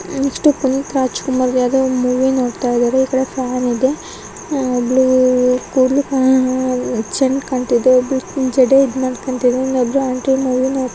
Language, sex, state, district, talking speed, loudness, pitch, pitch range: Kannada, female, Karnataka, Shimoga, 140 wpm, -16 LUFS, 260 Hz, 250-265 Hz